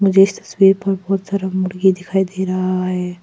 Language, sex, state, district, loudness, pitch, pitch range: Hindi, female, Arunachal Pradesh, Papum Pare, -17 LUFS, 190 Hz, 185-195 Hz